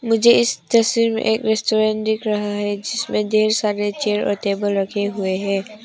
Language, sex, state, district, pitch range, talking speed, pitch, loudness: Hindi, female, Arunachal Pradesh, Papum Pare, 205-225 Hz, 185 wpm, 215 Hz, -19 LUFS